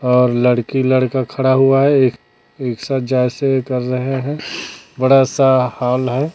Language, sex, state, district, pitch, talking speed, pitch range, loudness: Hindi, female, Chhattisgarh, Raipur, 130 Hz, 140 wpm, 125-135 Hz, -16 LUFS